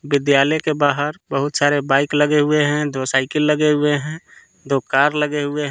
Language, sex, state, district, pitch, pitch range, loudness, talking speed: Hindi, male, Jharkhand, Palamu, 145 Hz, 140-150 Hz, -18 LUFS, 200 wpm